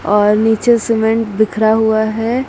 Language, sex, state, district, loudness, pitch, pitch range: Hindi, female, Maharashtra, Mumbai Suburban, -13 LUFS, 220 Hz, 215-225 Hz